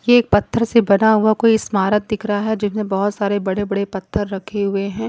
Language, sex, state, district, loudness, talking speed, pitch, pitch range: Hindi, female, Punjab, Kapurthala, -18 LUFS, 235 wpm, 205 Hz, 200-220 Hz